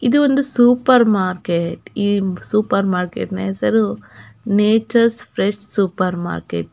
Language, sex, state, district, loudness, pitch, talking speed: Kannada, female, Karnataka, Belgaum, -17 LUFS, 195 Hz, 115 wpm